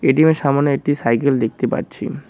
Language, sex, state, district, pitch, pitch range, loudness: Bengali, male, West Bengal, Cooch Behar, 140 Hz, 135-145 Hz, -18 LUFS